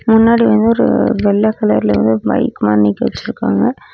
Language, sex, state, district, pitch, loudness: Tamil, female, Tamil Nadu, Namakkal, 205 Hz, -13 LUFS